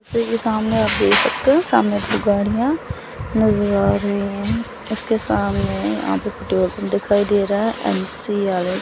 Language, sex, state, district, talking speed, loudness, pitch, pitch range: Hindi, female, Chandigarh, Chandigarh, 155 wpm, -19 LUFS, 205 Hz, 185-220 Hz